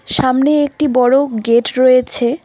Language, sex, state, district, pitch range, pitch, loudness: Bengali, female, West Bengal, Alipurduar, 245-285 Hz, 255 Hz, -13 LUFS